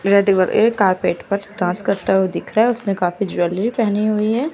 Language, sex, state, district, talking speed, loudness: Hindi, male, Chandigarh, Chandigarh, 200 wpm, -18 LUFS